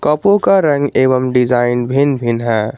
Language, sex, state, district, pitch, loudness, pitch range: Hindi, male, Jharkhand, Garhwa, 130 Hz, -13 LUFS, 120-145 Hz